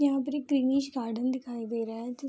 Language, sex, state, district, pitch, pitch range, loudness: Hindi, female, Bihar, Vaishali, 260 Hz, 235-275 Hz, -30 LUFS